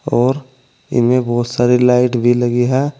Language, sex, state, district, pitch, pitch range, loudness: Hindi, male, Uttar Pradesh, Saharanpur, 125 Hz, 120-130 Hz, -14 LUFS